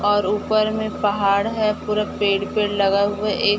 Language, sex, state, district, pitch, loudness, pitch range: Hindi, female, Chhattisgarh, Bilaspur, 205 Hz, -20 LUFS, 205-215 Hz